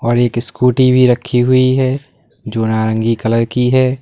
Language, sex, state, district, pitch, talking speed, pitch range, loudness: Hindi, male, Uttar Pradesh, Lalitpur, 125 Hz, 180 wpm, 115-130 Hz, -13 LUFS